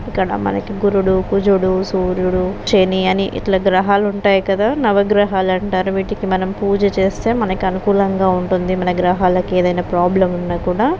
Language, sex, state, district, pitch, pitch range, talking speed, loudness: Telugu, female, Andhra Pradesh, Anantapur, 190 Hz, 185-200 Hz, 140 wpm, -16 LUFS